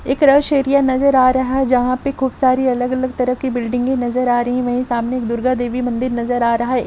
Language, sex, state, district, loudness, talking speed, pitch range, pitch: Hindi, female, Jharkhand, Sahebganj, -17 LUFS, 260 wpm, 245-265 Hz, 255 Hz